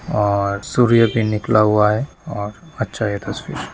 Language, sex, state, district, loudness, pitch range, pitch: Hindi, male, West Bengal, Jalpaiguri, -18 LUFS, 105-120 Hz, 110 Hz